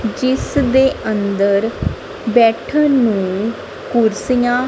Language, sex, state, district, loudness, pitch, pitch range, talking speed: Punjabi, female, Punjab, Kapurthala, -16 LUFS, 235 Hz, 215-255 Hz, 90 wpm